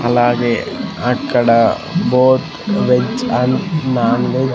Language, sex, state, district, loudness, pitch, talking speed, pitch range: Telugu, male, Andhra Pradesh, Sri Satya Sai, -15 LUFS, 125 Hz, 105 wpm, 120-130 Hz